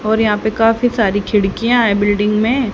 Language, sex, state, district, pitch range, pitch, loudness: Hindi, female, Haryana, Jhajjar, 205-230 Hz, 220 Hz, -14 LUFS